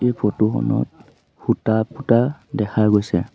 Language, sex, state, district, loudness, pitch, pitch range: Assamese, male, Assam, Sonitpur, -20 LUFS, 110 Hz, 105-125 Hz